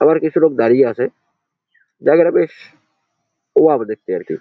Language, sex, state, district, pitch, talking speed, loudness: Bengali, male, West Bengal, Jalpaiguri, 390 Hz, 165 wpm, -15 LUFS